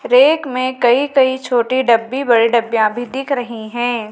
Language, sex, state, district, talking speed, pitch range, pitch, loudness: Hindi, female, Madhya Pradesh, Dhar, 175 wpm, 235-265 Hz, 245 Hz, -15 LUFS